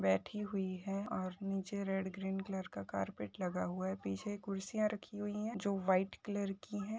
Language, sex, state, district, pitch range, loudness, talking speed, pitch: Hindi, female, Maharashtra, Nagpur, 185-205 Hz, -39 LUFS, 195 wpm, 195 Hz